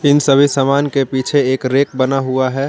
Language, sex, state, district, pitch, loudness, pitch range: Hindi, male, Jharkhand, Garhwa, 135 Hz, -14 LUFS, 130-140 Hz